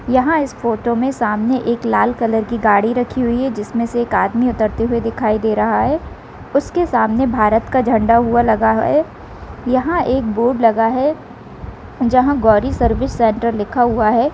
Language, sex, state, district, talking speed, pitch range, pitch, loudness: Hindi, female, Rajasthan, Nagaur, 180 wpm, 225-255 Hz, 235 Hz, -16 LUFS